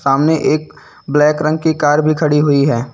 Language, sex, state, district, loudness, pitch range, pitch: Hindi, male, Uttar Pradesh, Lucknow, -14 LUFS, 145-155 Hz, 150 Hz